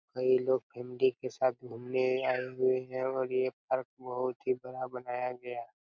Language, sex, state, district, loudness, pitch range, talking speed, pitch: Hindi, male, Chhattisgarh, Raigarh, -33 LUFS, 125-130 Hz, 175 wpm, 130 Hz